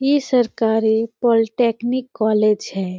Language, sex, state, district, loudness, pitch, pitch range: Hindi, female, Chhattisgarh, Sarguja, -18 LUFS, 225 Hz, 220-245 Hz